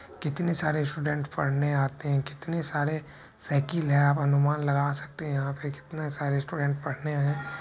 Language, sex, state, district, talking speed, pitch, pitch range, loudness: Hindi, male, Bihar, Purnia, 175 wpm, 145 Hz, 140-150 Hz, -28 LUFS